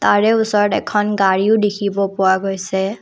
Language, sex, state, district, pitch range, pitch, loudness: Assamese, female, Assam, Kamrup Metropolitan, 190-210 Hz, 200 Hz, -16 LUFS